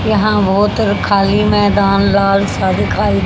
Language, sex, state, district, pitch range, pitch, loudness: Hindi, female, Haryana, Charkhi Dadri, 195-205 Hz, 200 Hz, -13 LUFS